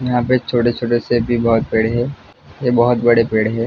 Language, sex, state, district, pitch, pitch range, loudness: Hindi, male, Jharkhand, Jamtara, 120 Hz, 115-125 Hz, -16 LUFS